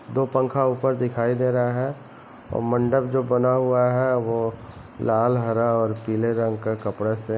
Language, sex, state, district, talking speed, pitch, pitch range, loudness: Hindi, male, Chhattisgarh, Bilaspur, 180 wpm, 120 Hz, 115-130 Hz, -23 LUFS